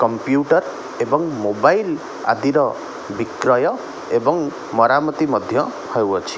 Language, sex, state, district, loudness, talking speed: Odia, male, Odisha, Khordha, -19 LUFS, 95 wpm